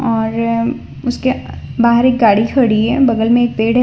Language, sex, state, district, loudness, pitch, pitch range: Hindi, female, Gujarat, Valsad, -14 LUFS, 235 Hz, 225-245 Hz